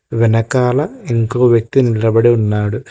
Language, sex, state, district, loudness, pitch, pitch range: Telugu, male, Telangana, Hyderabad, -14 LUFS, 115 Hz, 110-125 Hz